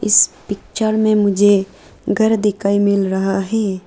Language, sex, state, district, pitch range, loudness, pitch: Hindi, female, Arunachal Pradesh, Lower Dibang Valley, 195-215 Hz, -16 LUFS, 205 Hz